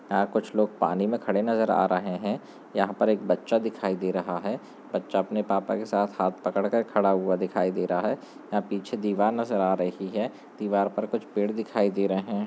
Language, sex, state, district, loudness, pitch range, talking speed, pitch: Hindi, male, Chhattisgarh, Balrampur, -27 LUFS, 95-105 Hz, 225 wpm, 100 Hz